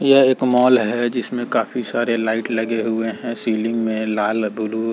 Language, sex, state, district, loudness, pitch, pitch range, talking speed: Hindi, male, Uttar Pradesh, Varanasi, -19 LUFS, 115 Hz, 110-120 Hz, 195 wpm